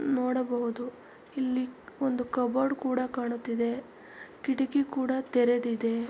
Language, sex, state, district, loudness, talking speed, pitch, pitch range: Kannada, female, Karnataka, Mysore, -30 LUFS, 90 wpm, 255 Hz, 240-265 Hz